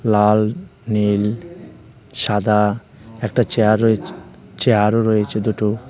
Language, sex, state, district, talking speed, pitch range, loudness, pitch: Bengali, male, Tripura, West Tripura, 110 wpm, 105-115 Hz, -18 LUFS, 110 Hz